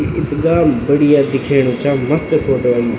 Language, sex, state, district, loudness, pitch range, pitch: Garhwali, male, Uttarakhand, Tehri Garhwal, -14 LUFS, 130-155 Hz, 140 Hz